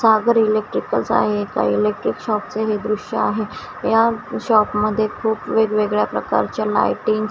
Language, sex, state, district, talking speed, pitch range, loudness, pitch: Marathi, female, Maharashtra, Washim, 150 wpm, 210-220 Hz, -19 LUFS, 215 Hz